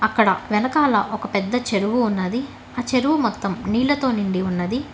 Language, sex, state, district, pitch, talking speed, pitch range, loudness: Telugu, female, Telangana, Hyderabad, 225 Hz, 145 wpm, 200-255 Hz, -21 LUFS